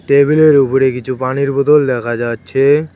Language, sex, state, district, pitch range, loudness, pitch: Bengali, male, West Bengal, Cooch Behar, 130-140 Hz, -13 LUFS, 135 Hz